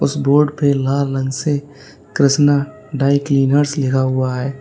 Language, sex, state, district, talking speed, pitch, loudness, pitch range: Hindi, male, Uttar Pradesh, Lalitpur, 155 wpm, 140 Hz, -16 LUFS, 135-145 Hz